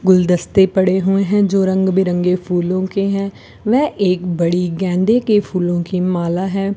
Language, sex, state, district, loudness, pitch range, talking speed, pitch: Hindi, female, Rajasthan, Bikaner, -16 LUFS, 180-195 Hz, 170 wpm, 190 Hz